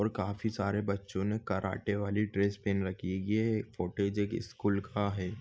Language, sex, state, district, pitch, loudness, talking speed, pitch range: Hindi, male, Goa, North and South Goa, 100 Hz, -33 LUFS, 190 wpm, 100-105 Hz